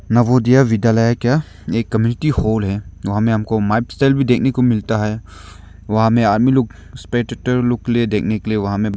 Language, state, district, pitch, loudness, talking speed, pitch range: Hindi, Arunachal Pradesh, Lower Dibang Valley, 115 Hz, -17 LUFS, 195 wpm, 105-120 Hz